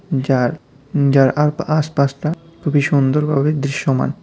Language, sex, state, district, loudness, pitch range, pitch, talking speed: Bengali, male, Tripura, West Tripura, -17 LUFS, 135-155 Hz, 145 Hz, 130 wpm